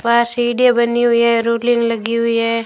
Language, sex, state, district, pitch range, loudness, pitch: Hindi, female, Rajasthan, Bikaner, 230-240 Hz, -15 LUFS, 235 Hz